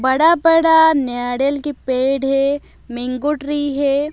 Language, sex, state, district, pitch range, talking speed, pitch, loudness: Hindi, female, Odisha, Malkangiri, 260-295 Hz, 130 wpm, 280 Hz, -16 LUFS